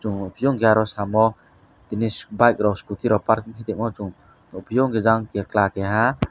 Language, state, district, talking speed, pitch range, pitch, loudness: Kokborok, Tripura, West Tripura, 180 wpm, 100-115 Hz, 110 Hz, -21 LUFS